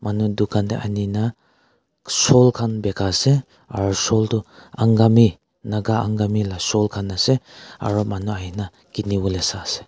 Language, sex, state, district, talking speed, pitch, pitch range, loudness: Nagamese, male, Nagaland, Kohima, 145 wpm, 105 Hz, 100-115 Hz, -20 LUFS